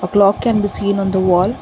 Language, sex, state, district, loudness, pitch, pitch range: English, female, Karnataka, Bangalore, -15 LUFS, 200 Hz, 190-205 Hz